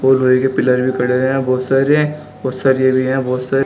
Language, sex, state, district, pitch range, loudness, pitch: Hindi, male, Uttar Pradesh, Shamli, 130-135 Hz, -15 LUFS, 130 Hz